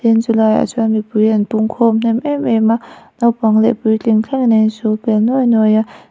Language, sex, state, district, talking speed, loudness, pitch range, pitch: Mizo, female, Mizoram, Aizawl, 205 wpm, -14 LUFS, 220-230 Hz, 225 Hz